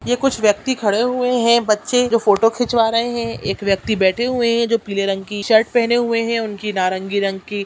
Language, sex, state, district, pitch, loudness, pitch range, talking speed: Hindi, female, Chhattisgarh, Raigarh, 225 Hz, -17 LUFS, 200-240 Hz, 210 wpm